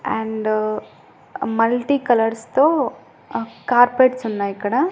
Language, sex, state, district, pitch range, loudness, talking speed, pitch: Telugu, female, Andhra Pradesh, Annamaya, 220-255 Hz, -19 LUFS, 95 wpm, 230 Hz